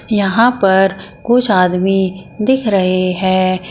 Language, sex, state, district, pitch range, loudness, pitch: Hindi, female, Uttar Pradesh, Shamli, 185-210 Hz, -14 LUFS, 190 Hz